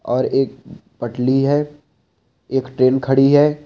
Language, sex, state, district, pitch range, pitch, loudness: Hindi, male, Chhattisgarh, Balrampur, 125-145 Hz, 135 Hz, -17 LUFS